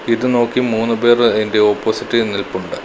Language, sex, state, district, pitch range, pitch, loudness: Malayalam, male, Kerala, Kollam, 110-120 Hz, 115 Hz, -15 LUFS